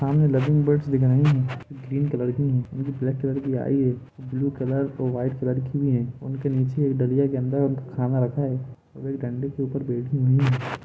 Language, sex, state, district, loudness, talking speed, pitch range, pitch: Hindi, male, Jharkhand, Jamtara, -24 LUFS, 200 wpm, 130-140 Hz, 135 Hz